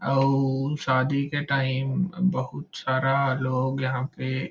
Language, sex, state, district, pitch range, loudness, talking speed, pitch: Chhattisgarhi, male, Chhattisgarh, Bilaspur, 130-140 Hz, -25 LUFS, 120 wpm, 135 Hz